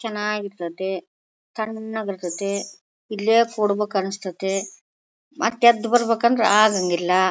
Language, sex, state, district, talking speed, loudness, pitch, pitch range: Kannada, female, Karnataka, Bellary, 75 wpm, -21 LUFS, 210 Hz, 190-220 Hz